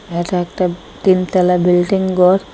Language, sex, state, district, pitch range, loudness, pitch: Bengali, female, Assam, Hailakandi, 175-185 Hz, -15 LUFS, 180 Hz